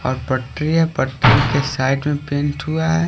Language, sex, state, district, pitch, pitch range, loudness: Hindi, male, Haryana, Rohtak, 145 Hz, 130-155 Hz, -18 LUFS